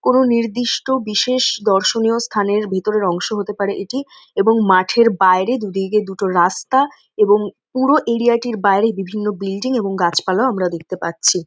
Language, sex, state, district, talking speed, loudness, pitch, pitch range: Bengali, female, West Bengal, North 24 Parganas, 140 wpm, -17 LUFS, 210 Hz, 195-240 Hz